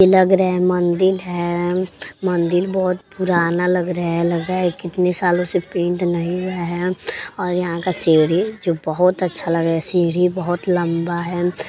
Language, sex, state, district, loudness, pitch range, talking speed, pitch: Bhojpuri, female, Uttar Pradesh, Deoria, -19 LUFS, 170-185 Hz, 165 wpm, 180 Hz